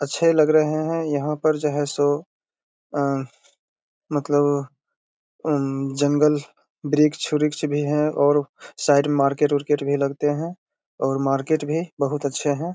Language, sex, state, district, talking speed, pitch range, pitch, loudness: Hindi, male, Bihar, Begusarai, 140 wpm, 140-150 Hz, 145 Hz, -22 LUFS